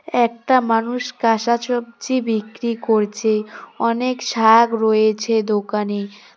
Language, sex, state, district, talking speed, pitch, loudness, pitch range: Bengali, female, West Bengal, Cooch Behar, 95 wpm, 225 Hz, -19 LUFS, 215-235 Hz